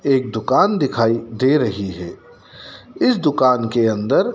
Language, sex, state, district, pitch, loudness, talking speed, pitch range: Hindi, male, Madhya Pradesh, Dhar, 115 Hz, -18 LUFS, 140 wpm, 110-130 Hz